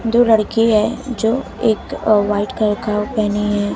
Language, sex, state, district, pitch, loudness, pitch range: Hindi, female, Maharashtra, Mumbai Suburban, 215 Hz, -17 LUFS, 210-225 Hz